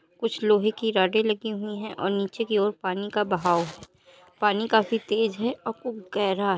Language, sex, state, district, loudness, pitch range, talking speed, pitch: Hindi, male, Uttar Pradesh, Jalaun, -25 LUFS, 190-220 Hz, 210 wpm, 210 Hz